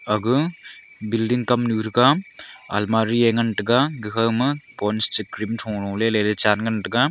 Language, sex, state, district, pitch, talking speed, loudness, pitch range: Wancho, male, Arunachal Pradesh, Longding, 115 Hz, 125 wpm, -21 LUFS, 105-120 Hz